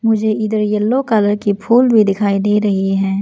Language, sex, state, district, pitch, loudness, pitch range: Hindi, female, Arunachal Pradesh, Lower Dibang Valley, 210 Hz, -15 LUFS, 200-220 Hz